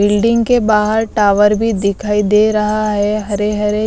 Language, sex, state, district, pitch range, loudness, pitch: Hindi, female, Bihar, West Champaran, 205-215 Hz, -14 LUFS, 210 Hz